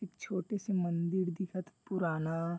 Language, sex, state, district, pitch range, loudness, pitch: Chhattisgarhi, male, Chhattisgarh, Bilaspur, 170-190 Hz, -35 LUFS, 185 Hz